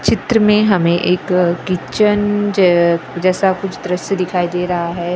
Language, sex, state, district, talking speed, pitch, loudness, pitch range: Hindi, female, Maharashtra, Gondia, 185 wpm, 185 Hz, -15 LUFS, 175-205 Hz